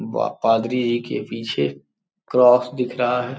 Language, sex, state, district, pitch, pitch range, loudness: Hindi, male, Uttar Pradesh, Gorakhpur, 120 Hz, 115-125 Hz, -20 LUFS